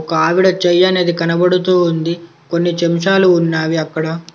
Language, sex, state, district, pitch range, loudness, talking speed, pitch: Telugu, male, Telangana, Komaram Bheem, 165-180 Hz, -14 LUFS, 135 wpm, 170 Hz